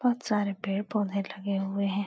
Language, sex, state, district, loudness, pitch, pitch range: Hindi, female, Uttar Pradesh, Etah, -30 LUFS, 200 Hz, 195-210 Hz